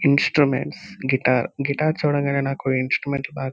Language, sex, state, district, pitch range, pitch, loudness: Telugu, male, Andhra Pradesh, Visakhapatnam, 135-145 Hz, 140 Hz, -21 LUFS